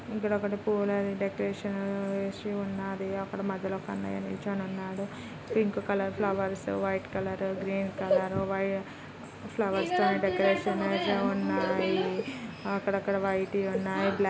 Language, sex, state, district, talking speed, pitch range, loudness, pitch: Telugu, female, Andhra Pradesh, Srikakulam, 125 wpm, 190-200 Hz, -30 LUFS, 195 Hz